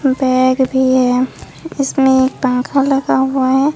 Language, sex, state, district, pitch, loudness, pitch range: Hindi, female, Bihar, Katihar, 265 Hz, -14 LUFS, 255-275 Hz